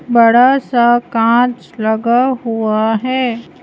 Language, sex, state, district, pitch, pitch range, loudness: Hindi, female, Madhya Pradesh, Bhopal, 235 Hz, 225-250 Hz, -13 LUFS